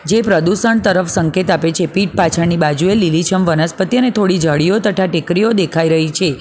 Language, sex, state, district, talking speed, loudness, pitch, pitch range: Gujarati, female, Gujarat, Valsad, 180 wpm, -14 LUFS, 185 Hz, 165-200 Hz